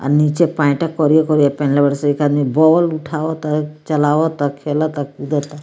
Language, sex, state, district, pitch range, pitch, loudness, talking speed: Bhojpuri, female, Bihar, Muzaffarpur, 145-155 Hz, 150 Hz, -16 LUFS, 160 wpm